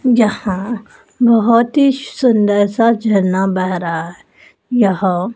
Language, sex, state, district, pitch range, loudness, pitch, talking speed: Hindi, male, Madhya Pradesh, Dhar, 190-235 Hz, -14 LUFS, 215 Hz, 100 wpm